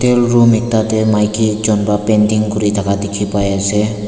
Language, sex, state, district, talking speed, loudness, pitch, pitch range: Nagamese, male, Nagaland, Dimapur, 175 wpm, -14 LUFS, 105 Hz, 105-110 Hz